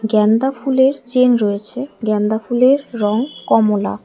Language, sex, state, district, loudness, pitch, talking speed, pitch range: Bengali, female, West Bengal, Alipurduar, -16 LUFS, 230 Hz, 120 wpm, 215-260 Hz